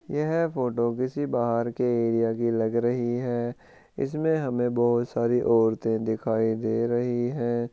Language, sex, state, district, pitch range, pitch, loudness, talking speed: Hindi, male, Rajasthan, Churu, 115-125 Hz, 120 Hz, -26 LUFS, 145 wpm